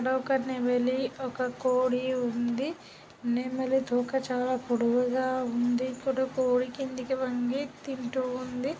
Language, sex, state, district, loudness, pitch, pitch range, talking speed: Telugu, male, Andhra Pradesh, Guntur, -29 LUFS, 255 Hz, 250-260 Hz, 110 wpm